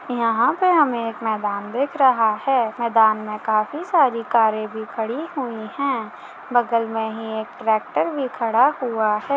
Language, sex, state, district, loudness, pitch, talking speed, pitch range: Hindi, female, Maharashtra, Chandrapur, -21 LUFS, 230 Hz, 165 wpm, 220-265 Hz